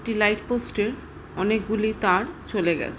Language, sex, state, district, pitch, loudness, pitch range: Bengali, female, West Bengal, Jhargram, 215 Hz, -24 LUFS, 195-220 Hz